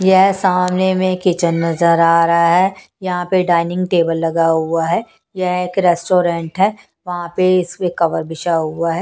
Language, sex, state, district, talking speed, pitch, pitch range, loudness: Hindi, female, Punjab, Pathankot, 175 wpm, 175 Hz, 170-185 Hz, -16 LUFS